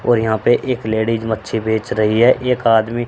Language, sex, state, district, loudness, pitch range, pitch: Hindi, male, Haryana, Charkhi Dadri, -16 LUFS, 110-120 Hz, 115 Hz